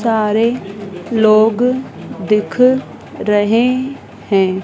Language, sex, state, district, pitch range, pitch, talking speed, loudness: Hindi, female, Madhya Pradesh, Dhar, 205-245 Hz, 220 Hz, 65 wpm, -15 LUFS